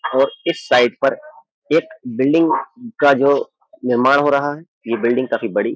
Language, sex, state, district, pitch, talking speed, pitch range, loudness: Hindi, male, Uttar Pradesh, Jyotiba Phule Nagar, 140 Hz, 175 wpm, 130-170 Hz, -17 LUFS